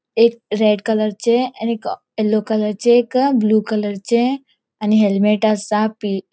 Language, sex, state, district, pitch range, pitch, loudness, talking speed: Konkani, female, Goa, North and South Goa, 210-235 Hz, 215 Hz, -17 LUFS, 135 wpm